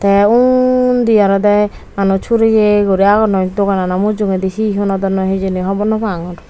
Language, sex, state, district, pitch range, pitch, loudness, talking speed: Chakma, female, Tripura, Unakoti, 195-215 Hz, 200 Hz, -13 LUFS, 150 wpm